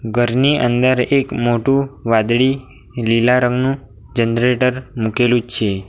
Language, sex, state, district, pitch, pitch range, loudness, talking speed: Gujarati, male, Gujarat, Valsad, 120 Hz, 115-130 Hz, -16 LUFS, 100 wpm